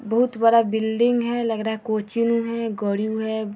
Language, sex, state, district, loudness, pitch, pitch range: Hindi, female, Bihar, Vaishali, -22 LUFS, 225 Hz, 220-230 Hz